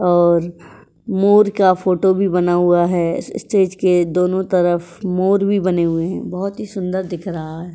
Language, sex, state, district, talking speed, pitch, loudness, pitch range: Hindi, female, Uttar Pradesh, Jyotiba Phule Nagar, 180 wpm, 180 Hz, -17 LUFS, 175-195 Hz